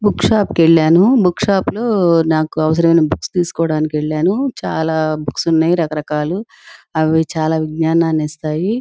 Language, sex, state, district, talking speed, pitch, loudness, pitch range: Telugu, female, Andhra Pradesh, Guntur, 125 wpm, 165 Hz, -15 LUFS, 155-185 Hz